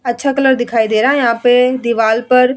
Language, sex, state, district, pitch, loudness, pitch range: Hindi, female, Bihar, Vaishali, 245 Hz, -13 LUFS, 235-260 Hz